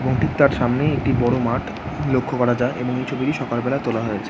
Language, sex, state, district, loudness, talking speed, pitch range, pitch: Bengali, male, West Bengal, Jhargram, -21 LUFS, 250 wpm, 120-135 Hz, 125 Hz